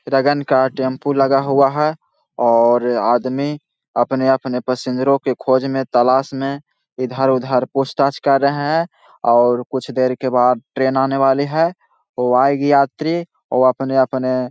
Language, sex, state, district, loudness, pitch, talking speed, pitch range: Hindi, male, Bihar, Jahanabad, -17 LUFS, 135 Hz, 140 wpm, 130-140 Hz